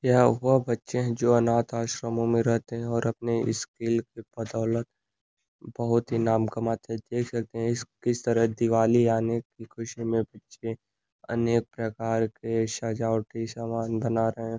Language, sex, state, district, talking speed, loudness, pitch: Hindi, male, Uttar Pradesh, Gorakhpur, 170 wpm, -27 LUFS, 115 Hz